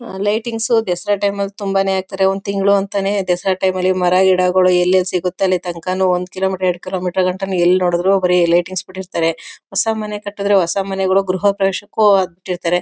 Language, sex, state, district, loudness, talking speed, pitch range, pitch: Kannada, female, Karnataka, Mysore, -17 LUFS, 180 wpm, 180-200 Hz, 190 Hz